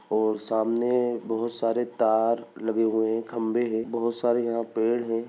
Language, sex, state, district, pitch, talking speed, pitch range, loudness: Bhojpuri, male, Bihar, Saran, 115 Hz, 170 wpm, 110-120 Hz, -26 LUFS